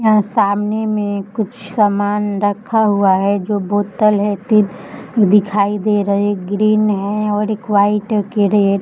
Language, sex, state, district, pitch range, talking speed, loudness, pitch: Hindi, female, Jharkhand, Jamtara, 200-215 Hz, 155 wpm, -16 LUFS, 205 Hz